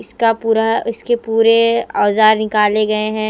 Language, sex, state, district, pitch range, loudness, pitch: Hindi, female, Chhattisgarh, Raipur, 215-230 Hz, -14 LUFS, 225 Hz